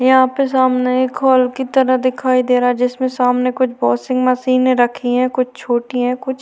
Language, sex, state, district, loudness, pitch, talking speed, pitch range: Hindi, female, Chhattisgarh, Korba, -15 LUFS, 255 Hz, 215 wpm, 250-260 Hz